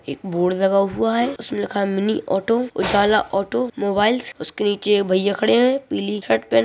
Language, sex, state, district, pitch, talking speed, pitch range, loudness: Hindi, female, Uttar Pradesh, Budaun, 200 Hz, 205 wpm, 190-225 Hz, -20 LUFS